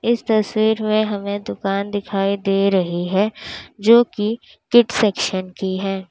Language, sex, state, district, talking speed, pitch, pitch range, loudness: Hindi, female, Uttar Pradesh, Lalitpur, 145 wpm, 205 Hz, 195-215 Hz, -19 LUFS